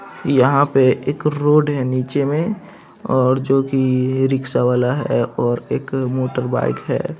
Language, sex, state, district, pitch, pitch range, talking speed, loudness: Hindi, male, Bihar, Saharsa, 130 Hz, 130-140 Hz, 140 wpm, -18 LUFS